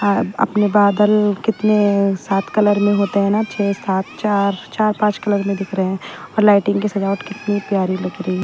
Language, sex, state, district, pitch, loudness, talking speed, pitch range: Hindi, female, Haryana, Jhajjar, 200 Hz, -17 LUFS, 200 wpm, 195-210 Hz